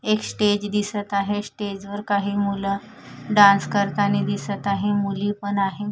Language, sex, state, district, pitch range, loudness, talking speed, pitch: Marathi, female, Maharashtra, Mumbai Suburban, 200-205 Hz, -22 LUFS, 140 wpm, 205 Hz